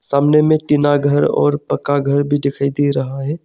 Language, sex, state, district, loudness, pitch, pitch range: Hindi, male, Arunachal Pradesh, Longding, -16 LUFS, 145 Hz, 140-145 Hz